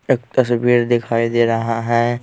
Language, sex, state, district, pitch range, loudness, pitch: Hindi, male, Bihar, Patna, 115-120 Hz, -17 LUFS, 120 Hz